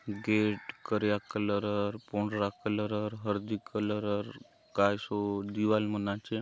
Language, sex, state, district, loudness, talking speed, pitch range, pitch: Halbi, male, Chhattisgarh, Bastar, -32 LUFS, 110 wpm, 100-105 Hz, 105 Hz